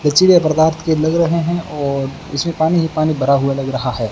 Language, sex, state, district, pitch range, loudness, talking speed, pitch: Hindi, male, Rajasthan, Bikaner, 140-165 Hz, -16 LUFS, 235 wpm, 155 Hz